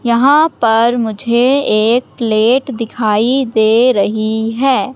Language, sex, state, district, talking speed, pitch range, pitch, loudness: Hindi, female, Madhya Pradesh, Katni, 110 wpm, 220-260 Hz, 235 Hz, -13 LUFS